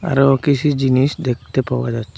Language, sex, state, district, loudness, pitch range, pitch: Bengali, male, Assam, Hailakandi, -17 LUFS, 125-140 Hz, 135 Hz